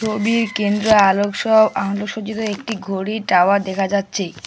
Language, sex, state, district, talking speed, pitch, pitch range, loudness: Bengali, male, West Bengal, Alipurduar, 120 wpm, 205 Hz, 195-220 Hz, -18 LUFS